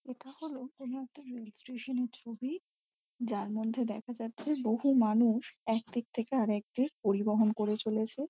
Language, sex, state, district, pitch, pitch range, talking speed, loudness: Bengali, female, West Bengal, Kolkata, 240 Hz, 220-260 Hz, 150 wpm, -33 LUFS